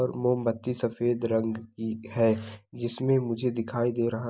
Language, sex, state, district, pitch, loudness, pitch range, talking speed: Hindi, male, Andhra Pradesh, Chittoor, 115 Hz, -28 LUFS, 115-120 Hz, 165 wpm